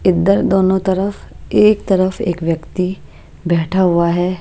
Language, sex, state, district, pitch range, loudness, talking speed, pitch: Hindi, female, Maharashtra, Washim, 175-190 Hz, -15 LUFS, 135 wpm, 185 Hz